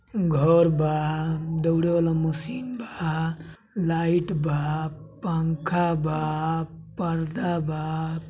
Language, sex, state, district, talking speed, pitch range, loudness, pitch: Bhojpuri, male, Uttar Pradesh, Gorakhpur, 85 wpm, 155-170 Hz, -25 LUFS, 160 Hz